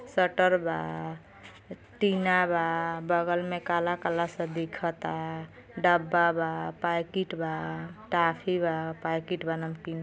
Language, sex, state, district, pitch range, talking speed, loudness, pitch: Bhojpuri, female, Uttar Pradesh, Gorakhpur, 160-175 Hz, 80 wpm, -29 LUFS, 170 Hz